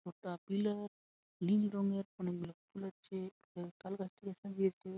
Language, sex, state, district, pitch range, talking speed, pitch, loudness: Bengali, male, West Bengal, Malda, 180-195 Hz, 95 wpm, 190 Hz, -40 LUFS